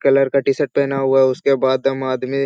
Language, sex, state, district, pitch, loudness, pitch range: Hindi, male, Bihar, Jahanabad, 135 Hz, -17 LUFS, 130-135 Hz